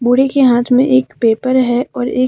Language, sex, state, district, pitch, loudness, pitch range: Hindi, female, Jharkhand, Deoghar, 255 Hz, -13 LUFS, 245-260 Hz